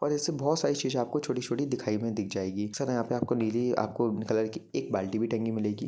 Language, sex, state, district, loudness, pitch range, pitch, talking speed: Hindi, male, Jharkhand, Jamtara, -30 LUFS, 110-130 Hz, 120 Hz, 245 wpm